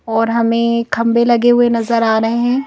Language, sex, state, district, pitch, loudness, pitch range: Hindi, female, Madhya Pradesh, Bhopal, 235 Hz, -14 LUFS, 230-240 Hz